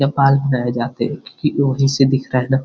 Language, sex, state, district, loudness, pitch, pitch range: Hindi, male, Uttarakhand, Uttarkashi, -17 LUFS, 135 Hz, 130-135 Hz